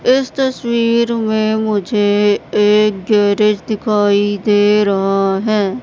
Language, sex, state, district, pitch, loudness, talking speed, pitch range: Hindi, female, Madhya Pradesh, Katni, 210 Hz, -14 LUFS, 105 wpm, 205-220 Hz